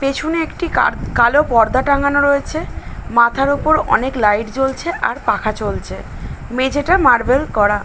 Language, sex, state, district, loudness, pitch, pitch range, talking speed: Bengali, female, West Bengal, Malda, -16 LUFS, 270 Hz, 235-290 Hz, 140 wpm